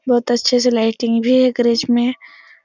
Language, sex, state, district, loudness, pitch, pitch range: Hindi, female, Bihar, Supaul, -16 LUFS, 240 Hz, 235-250 Hz